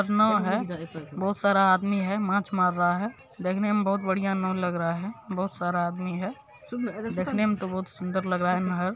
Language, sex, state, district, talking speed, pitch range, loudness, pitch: Maithili, male, Bihar, Supaul, 215 wpm, 180-205 Hz, -27 LUFS, 190 Hz